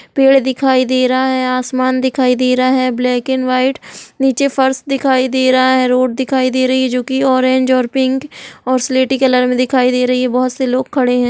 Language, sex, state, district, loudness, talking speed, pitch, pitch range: Hindi, female, Bihar, Jahanabad, -14 LUFS, 230 wpm, 255 Hz, 255-260 Hz